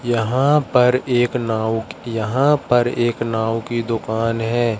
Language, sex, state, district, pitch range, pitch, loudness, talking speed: Hindi, male, Madhya Pradesh, Katni, 115-125 Hz, 120 Hz, -19 LUFS, 135 wpm